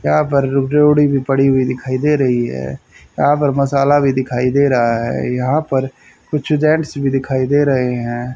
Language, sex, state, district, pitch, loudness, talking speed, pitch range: Hindi, male, Haryana, Charkhi Dadri, 135 Hz, -15 LUFS, 200 wpm, 125-145 Hz